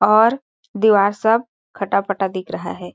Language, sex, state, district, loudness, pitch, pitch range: Hindi, female, Chhattisgarh, Balrampur, -18 LUFS, 210 Hz, 200-225 Hz